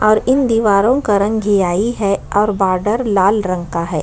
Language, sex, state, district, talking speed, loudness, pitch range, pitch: Hindi, female, Chhattisgarh, Sukma, 180 wpm, -15 LUFS, 190-215 Hz, 205 Hz